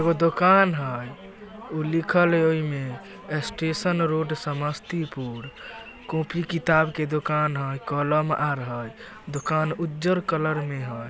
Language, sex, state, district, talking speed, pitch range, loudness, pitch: Magahi, male, Bihar, Samastipur, 125 wpm, 145-170 Hz, -25 LUFS, 155 Hz